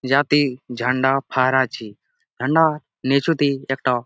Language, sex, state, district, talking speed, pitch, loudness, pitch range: Bengali, male, West Bengal, Jalpaiguri, 120 wpm, 130 Hz, -20 LUFS, 130-145 Hz